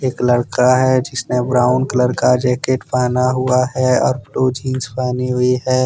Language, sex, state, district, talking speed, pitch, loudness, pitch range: Hindi, male, Jharkhand, Deoghar, 165 wpm, 125 Hz, -16 LUFS, 125-130 Hz